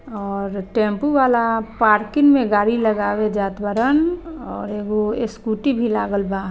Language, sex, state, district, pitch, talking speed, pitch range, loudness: Bhojpuri, female, Bihar, Saran, 220 Hz, 140 wpm, 205-250 Hz, -19 LUFS